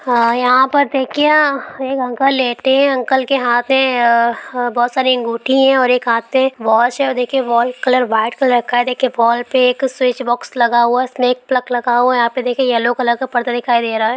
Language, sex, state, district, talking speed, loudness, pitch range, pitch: Hindi, female, Bihar, Lakhisarai, 260 wpm, -14 LUFS, 240-265 Hz, 250 Hz